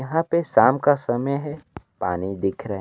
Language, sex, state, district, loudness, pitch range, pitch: Hindi, male, Bihar, Kaimur, -22 LUFS, 100-145 Hz, 130 Hz